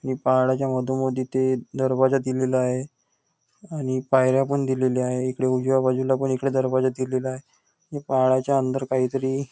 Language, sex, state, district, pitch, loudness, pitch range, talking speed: Marathi, male, Maharashtra, Nagpur, 130 Hz, -23 LUFS, 130-135 Hz, 165 wpm